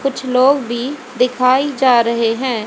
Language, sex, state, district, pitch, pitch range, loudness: Hindi, female, Haryana, Rohtak, 255 Hz, 240-265 Hz, -15 LUFS